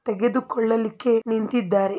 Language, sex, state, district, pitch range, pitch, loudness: Kannada, female, Karnataka, Mysore, 215-240 Hz, 225 Hz, -22 LUFS